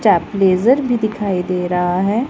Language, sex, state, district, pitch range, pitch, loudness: Hindi, male, Punjab, Pathankot, 180-220 Hz, 195 Hz, -16 LUFS